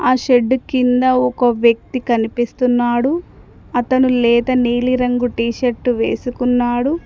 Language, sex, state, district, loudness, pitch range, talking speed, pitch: Telugu, female, Telangana, Mahabubabad, -16 LUFS, 240-255 Hz, 100 wpm, 245 Hz